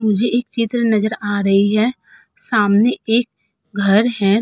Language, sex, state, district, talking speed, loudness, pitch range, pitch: Hindi, female, Uttar Pradesh, Budaun, 150 wpm, -17 LUFS, 205-235 Hz, 220 Hz